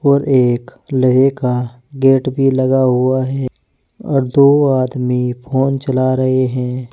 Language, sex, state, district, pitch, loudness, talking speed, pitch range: Hindi, male, Uttar Pradesh, Saharanpur, 130 Hz, -15 LUFS, 140 wpm, 125-135 Hz